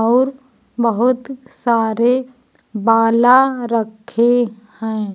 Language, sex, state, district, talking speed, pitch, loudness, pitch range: Hindi, female, Uttar Pradesh, Lucknow, 70 wpm, 235 Hz, -16 LUFS, 225-250 Hz